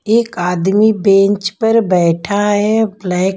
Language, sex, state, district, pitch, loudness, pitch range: Hindi, female, Punjab, Kapurthala, 200 Hz, -13 LUFS, 185-215 Hz